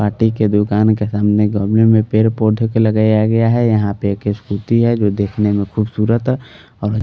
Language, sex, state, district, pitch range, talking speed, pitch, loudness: Hindi, male, Delhi, New Delhi, 105-115 Hz, 195 wpm, 110 Hz, -15 LUFS